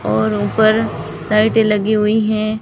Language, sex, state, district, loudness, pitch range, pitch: Hindi, female, Rajasthan, Barmer, -15 LUFS, 205-220 Hz, 215 Hz